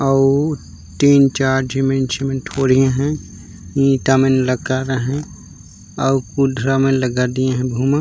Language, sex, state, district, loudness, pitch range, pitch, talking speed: Chhattisgarhi, male, Chhattisgarh, Raigarh, -17 LUFS, 125-135 Hz, 135 Hz, 135 wpm